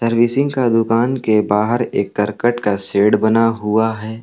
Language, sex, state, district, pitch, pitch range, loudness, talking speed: Hindi, male, Jharkhand, Palamu, 115 Hz, 105-120 Hz, -16 LUFS, 170 wpm